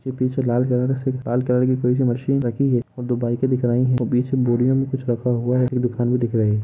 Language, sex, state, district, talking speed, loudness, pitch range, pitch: Hindi, male, Jharkhand, Sahebganj, 280 wpm, -20 LUFS, 120-130 Hz, 125 Hz